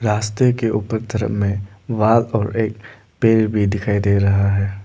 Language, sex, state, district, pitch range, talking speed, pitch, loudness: Hindi, male, Arunachal Pradesh, Lower Dibang Valley, 100-110 Hz, 160 wpm, 105 Hz, -18 LUFS